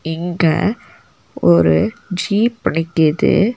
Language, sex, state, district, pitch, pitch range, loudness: Tamil, female, Tamil Nadu, Nilgiris, 165 Hz, 160-205 Hz, -16 LUFS